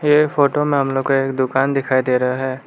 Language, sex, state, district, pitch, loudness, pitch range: Hindi, male, Arunachal Pradesh, Lower Dibang Valley, 135 Hz, -17 LUFS, 130-140 Hz